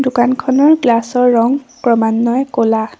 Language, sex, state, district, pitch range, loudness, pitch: Assamese, female, Assam, Sonitpur, 230-260 Hz, -13 LUFS, 245 Hz